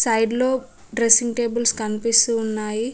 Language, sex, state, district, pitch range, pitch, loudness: Telugu, female, Telangana, Mahabubabad, 225-240 Hz, 230 Hz, -19 LUFS